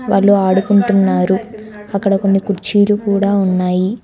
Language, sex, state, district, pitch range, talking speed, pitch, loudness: Telugu, female, Telangana, Hyderabad, 190-205 Hz, 105 wpm, 200 Hz, -14 LUFS